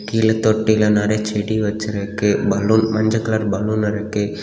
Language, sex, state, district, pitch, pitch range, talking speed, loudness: Tamil, male, Tamil Nadu, Kanyakumari, 110 Hz, 105-110 Hz, 135 wpm, -18 LUFS